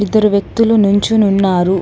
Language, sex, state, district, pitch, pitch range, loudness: Telugu, female, Telangana, Hyderabad, 205 Hz, 195-220 Hz, -12 LUFS